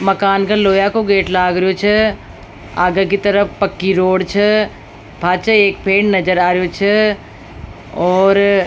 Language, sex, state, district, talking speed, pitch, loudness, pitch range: Rajasthani, female, Rajasthan, Nagaur, 160 wpm, 195 Hz, -14 LUFS, 185-205 Hz